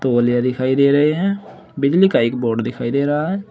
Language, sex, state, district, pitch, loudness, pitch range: Hindi, male, Uttar Pradesh, Saharanpur, 140 Hz, -17 LUFS, 125-175 Hz